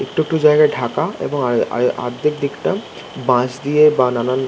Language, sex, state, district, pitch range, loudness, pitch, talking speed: Bengali, male, West Bengal, Kolkata, 125-150 Hz, -17 LUFS, 135 Hz, 175 wpm